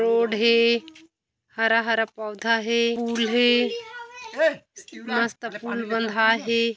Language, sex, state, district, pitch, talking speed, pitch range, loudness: Hindi, female, Chhattisgarh, Kabirdham, 230 Hz, 100 wpm, 230-240 Hz, -22 LUFS